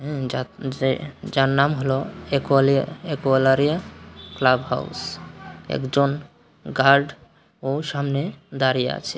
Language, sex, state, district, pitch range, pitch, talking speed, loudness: Bengali, male, Tripura, West Tripura, 130-145 Hz, 135 Hz, 85 wpm, -22 LUFS